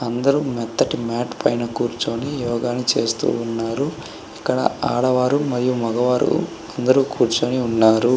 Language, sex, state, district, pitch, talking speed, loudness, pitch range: Telugu, male, Andhra Pradesh, Chittoor, 120 Hz, 105 wpm, -20 LUFS, 115-130 Hz